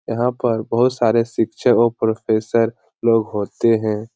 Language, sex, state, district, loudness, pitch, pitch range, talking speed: Hindi, male, Bihar, Lakhisarai, -18 LUFS, 115 Hz, 110-120 Hz, 145 wpm